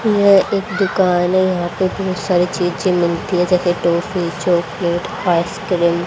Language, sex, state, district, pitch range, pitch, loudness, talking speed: Hindi, female, Haryana, Rohtak, 175-190 Hz, 180 Hz, -17 LUFS, 140 wpm